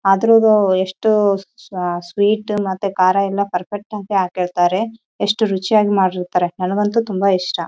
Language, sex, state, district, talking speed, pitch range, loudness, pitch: Kannada, female, Karnataka, Raichur, 110 wpm, 185-210 Hz, -17 LUFS, 195 Hz